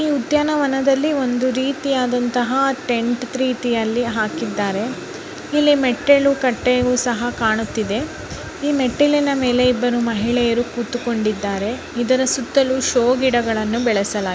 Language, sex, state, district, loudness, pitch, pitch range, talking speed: Kannada, female, Karnataka, Bijapur, -18 LUFS, 250 Hz, 235-270 Hz, 100 wpm